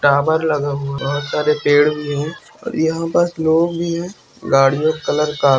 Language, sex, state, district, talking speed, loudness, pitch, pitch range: Hindi, male, Rajasthan, Churu, 170 wpm, -17 LUFS, 150 Hz, 145-160 Hz